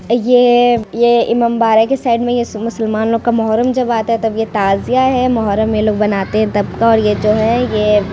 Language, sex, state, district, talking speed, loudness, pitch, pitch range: Hindi, female, Bihar, Muzaffarpur, 215 wpm, -13 LUFS, 230 Hz, 215-240 Hz